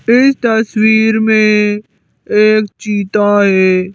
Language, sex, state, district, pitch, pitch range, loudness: Hindi, female, Madhya Pradesh, Bhopal, 215 Hz, 205-220 Hz, -11 LUFS